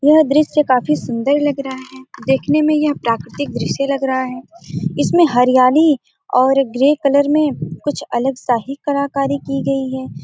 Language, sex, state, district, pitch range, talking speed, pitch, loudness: Hindi, female, Bihar, Gopalganj, 240-285 Hz, 175 wpm, 270 Hz, -16 LUFS